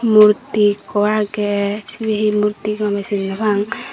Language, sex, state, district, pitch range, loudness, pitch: Chakma, female, Tripura, Dhalai, 205-215 Hz, -17 LUFS, 210 Hz